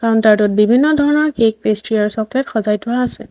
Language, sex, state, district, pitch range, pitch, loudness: Assamese, female, Assam, Sonitpur, 215-255 Hz, 225 Hz, -15 LUFS